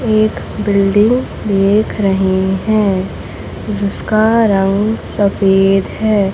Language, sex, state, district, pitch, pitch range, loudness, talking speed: Hindi, female, Chhattisgarh, Raipur, 200 Hz, 195-215 Hz, -14 LUFS, 85 wpm